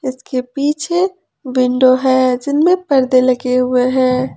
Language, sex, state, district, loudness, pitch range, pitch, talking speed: Hindi, female, Jharkhand, Ranchi, -14 LUFS, 255-285 Hz, 260 Hz, 125 wpm